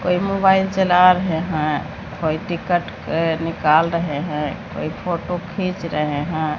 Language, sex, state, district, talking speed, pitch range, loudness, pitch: Hindi, female, Bihar, Katihar, 135 wpm, 155-180 Hz, -20 LUFS, 170 Hz